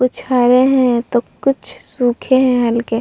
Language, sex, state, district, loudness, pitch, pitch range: Hindi, female, Uttar Pradesh, Muzaffarnagar, -15 LUFS, 250 Hz, 240-260 Hz